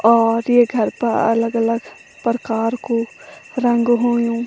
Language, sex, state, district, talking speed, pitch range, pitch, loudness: Garhwali, female, Uttarakhand, Tehri Garhwal, 120 wpm, 230-240 Hz, 235 Hz, -18 LUFS